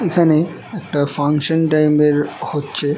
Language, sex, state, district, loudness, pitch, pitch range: Bengali, male, West Bengal, North 24 Parganas, -17 LUFS, 150 Hz, 145-165 Hz